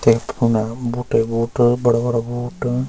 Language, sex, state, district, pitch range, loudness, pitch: Garhwali, male, Uttarakhand, Uttarkashi, 115-120 Hz, -19 LUFS, 120 Hz